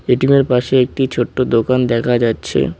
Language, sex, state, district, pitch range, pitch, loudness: Bengali, male, West Bengal, Cooch Behar, 120-130 Hz, 125 Hz, -15 LUFS